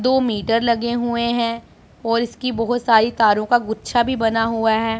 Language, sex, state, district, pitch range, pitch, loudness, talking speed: Hindi, female, Punjab, Pathankot, 225-240 Hz, 230 Hz, -19 LUFS, 190 wpm